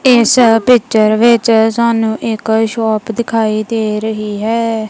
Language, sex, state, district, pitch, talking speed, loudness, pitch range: Punjabi, female, Punjab, Kapurthala, 225 Hz, 120 wpm, -12 LUFS, 220-230 Hz